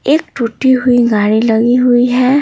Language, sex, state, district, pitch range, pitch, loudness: Hindi, female, Bihar, Patna, 230-255 Hz, 245 Hz, -11 LUFS